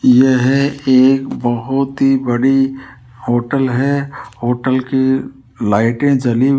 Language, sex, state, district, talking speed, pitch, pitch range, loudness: Hindi, male, Rajasthan, Jaipur, 110 wpm, 130 Hz, 120-135 Hz, -15 LUFS